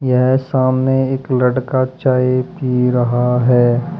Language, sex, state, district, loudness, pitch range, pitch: Hindi, male, Uttar Pradesh, Shamli, -15 LUFS, 125-130 Hz, 130 Hz